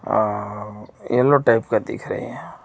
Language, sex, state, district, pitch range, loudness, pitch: Hindi, male, Jharkhand, Ranchi, 105-125 Hz, -20 LUFS, 105 Hz